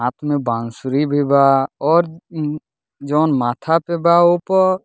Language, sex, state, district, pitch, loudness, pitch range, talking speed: Bhojpuri, male, Bihar, Muzaffarpur, 150 Hz, -17 LUFS, 135-170 Hz, 160 wpm